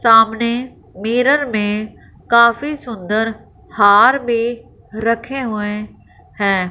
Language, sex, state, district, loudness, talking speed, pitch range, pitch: Hindi, female, Punjab, Fazilka, -16 LUFS, 90 wpm, 210-240 Hz, 230 Hz